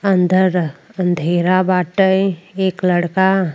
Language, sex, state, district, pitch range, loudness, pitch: Bhojpuri, female, Uttar Pradesh, Ghazipur, 175-190 Hz, -16 LUFS, 185 Hz